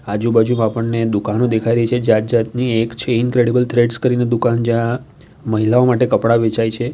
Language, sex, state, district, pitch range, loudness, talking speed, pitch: Gujarati, male, Gujarat, Valsad, 115-125 Hz, -16 LUFS, 175 wpm, 115 Hz